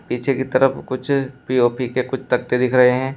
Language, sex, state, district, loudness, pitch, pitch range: Hindi, male, Uttar Pradesh, Shamli, -19 LUFS, 130 Hz, 125-130 Hz